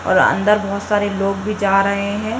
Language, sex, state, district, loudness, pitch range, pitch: Hindi, female, Uttar Pradesh, Hamirpur, -17 LUFS, 200-210 Hz, 205 Hz